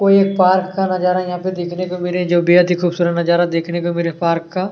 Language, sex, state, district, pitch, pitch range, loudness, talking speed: Hindi, male, Chhattisgarh, Kabirdham, 180 Hz, 175-185 Hz, -16 LUFS, 280 wpm